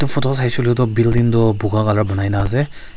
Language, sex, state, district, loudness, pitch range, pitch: Nagamese, male, Nagaland, Kohima, -16 LUFS, 105-130 Hz, 115 Hz